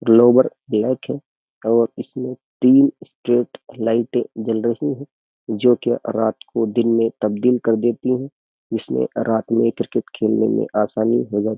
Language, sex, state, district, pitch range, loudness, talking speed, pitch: Hindi, male, Uttar Pradesh, Jyotiba Phule Nagar, 110-125 Hz, -19 LUFS, 160 wpm, 115 Hz